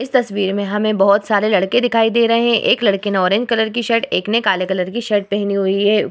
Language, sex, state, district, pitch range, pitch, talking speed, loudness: Hindi, female, Bihar, Vaishali, 200-230 Hz, 210 Hz, 265 wpm, -16 LUFS